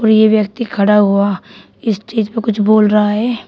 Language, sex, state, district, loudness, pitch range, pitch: Hindi, female, Uttar Pradesh, Shamli, -13 LUFS, 205-220 Hz, 215 Hz